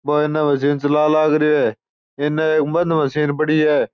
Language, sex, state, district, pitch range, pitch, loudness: Marwari, male, Rajasthan, Churu, 145-155 Hz, 150 Hz, -17 LUFS